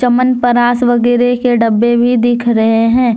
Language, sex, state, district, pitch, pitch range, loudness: Hindi, female, Jharkhand, Deoghar, 240 Hz, 235-245 Hz, -11 LUFS